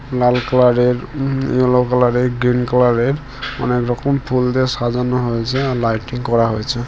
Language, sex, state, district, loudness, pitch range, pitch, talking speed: Bengali, male, West Bengal, Kolkata, -17 LUFS, 120-130 Hz, 125 Hz, 165 wpm